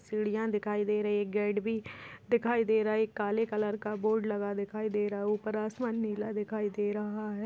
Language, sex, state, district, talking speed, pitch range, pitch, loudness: Hindi, female, Rajasthan, Churu, 215 wpm, 210-220 Hz, 210 Hz, -32 LUFS